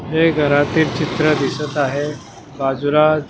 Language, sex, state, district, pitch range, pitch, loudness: Marathi, male, Maharashtra, Mumbai Suburban, 140-155 Hz, 150 Hz, -17 LUFS